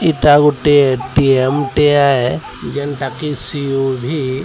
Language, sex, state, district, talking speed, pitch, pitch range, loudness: Odia, male, Odisha, Sambalpur, 110 wpm, 140 Hz, 130-145 Hz, -14 LUFS